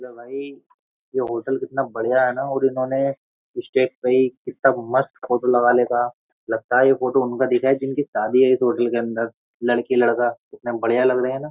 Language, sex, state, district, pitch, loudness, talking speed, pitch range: Hindi, male, Uttar Pradesh, Jyotiba Phule Nagar, 125 Hz, -20 LUFS, 205 wpm, 120-135 Hz